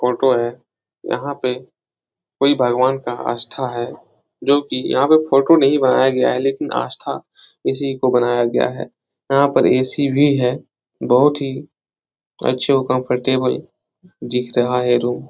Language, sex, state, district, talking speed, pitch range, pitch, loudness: Hindi, male, Bihar, Jahanabad, 155 wpm, 125-140 Hz, 130 Hz, -17 LUFS